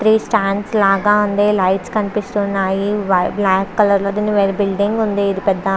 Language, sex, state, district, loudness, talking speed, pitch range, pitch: Telugu, female, Andhra Pradesh, Visakhapatnam, -16 LUFS, 145 wpm, 195-210 Hz, 200 Hz